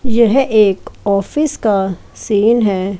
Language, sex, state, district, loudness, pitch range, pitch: Hindi, female, Chandigarh, Chandigarh, -14 LUFS, 195-235 Hz, 210 Hz